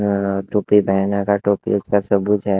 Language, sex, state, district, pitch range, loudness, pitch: Hindi, male, Haryana, Jhajjar, 100-105 Hz, -18 LUFS, 100 Hz